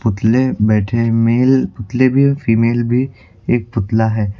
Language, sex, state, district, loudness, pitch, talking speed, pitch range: Hindi, male, Uttar Pradesh, Lucknow, -15 LUFS, 115 Hz, 165 wpm, 110-125 Hz